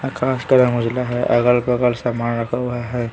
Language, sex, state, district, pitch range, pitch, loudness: Hindi, male, Bihar, Patna, 120-125 Hz, 120 Hz, -18 LUFS